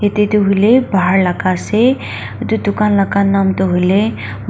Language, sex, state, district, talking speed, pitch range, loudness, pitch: Nagamese, female, Nagaland, Dimapur, 160 wpm, 190-210 Hz, -14 LUFS, 200 Hz